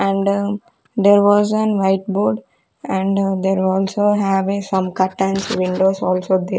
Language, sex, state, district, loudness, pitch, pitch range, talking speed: English, female, Chandigarh, Chandigarh, -17 LUFS, 195 Hz, 190-200 Hz, 165 wpm